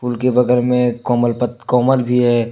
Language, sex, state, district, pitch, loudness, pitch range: Hindi, male, Jharkhand, Deoghar, 125 Hz, -16 LUFS, 120-125 Hz